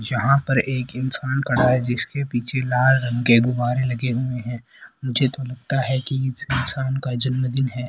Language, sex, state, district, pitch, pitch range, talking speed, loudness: Hindi, female, Haryana, Rohtak, 130 Hz, 125-135 Hz, 175 wpm, -21 LUFS